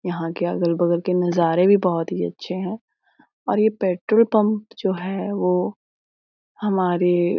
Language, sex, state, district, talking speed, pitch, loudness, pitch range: Hindi, female, Bihar, Jahanabad, 155 wpm, 180 Hz, -21 LUFS, 175-200 Hz